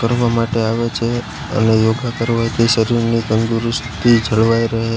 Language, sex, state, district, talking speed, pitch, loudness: Gujarati, male, Gujarat, Gandhinagar, 130 wpm, 115 Hz, -16 LUFS